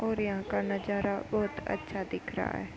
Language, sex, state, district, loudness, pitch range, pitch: Hindi, female, Uttar Pradesh, Hamirpur, -33 LUFS, 200-215 Hz, 200 Hz